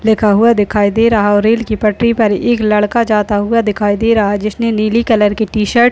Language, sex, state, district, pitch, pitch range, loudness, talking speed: Hindi, male, Uttar Pradesh, Deoria, 215 Hz, 210-230 Hz, -12 LUFS, 255 wpm